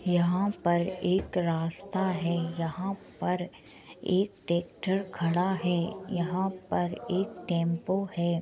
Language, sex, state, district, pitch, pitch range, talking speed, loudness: Hindi, female, Uttar Pradesh, Budaun, 180 Hz, 170-190 Hz, 115 wpm, -30 LUFS